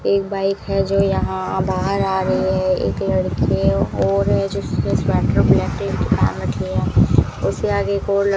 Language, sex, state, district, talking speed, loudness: Hindi, female, Rajasthan, Bikaner, 195 wpm, -19 LUFS